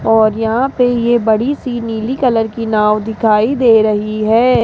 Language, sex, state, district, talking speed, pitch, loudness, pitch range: Hindi, female, Rajasthan, Jaipur, 180 wpm, 225 Hz, -13 LUFS, 220-245 Hz